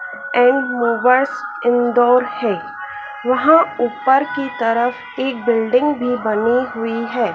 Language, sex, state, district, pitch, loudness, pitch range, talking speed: Hindi, female, Madhya Pradesh, Dhar, 245 Hz, -17 LUFS, 230-255 Hz, 120 wpm